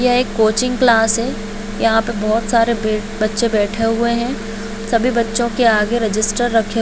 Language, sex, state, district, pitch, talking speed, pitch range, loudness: Hindi, female, Chhattisgarh, Bilaspur, 225 Hz, 185 wpm, 215-235 Hz, -17 LUFS